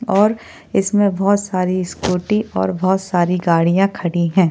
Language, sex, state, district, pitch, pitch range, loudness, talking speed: Hindi, female, Maharashtra, Chandrapur, 185 Hz, 175-200 Hz, -17 LUFS, 145 wpm